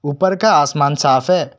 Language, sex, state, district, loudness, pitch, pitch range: Hindi, male, Assam, Kamrup Metropolitan, -14 LUFS, 145 Hz, 140-185 Hz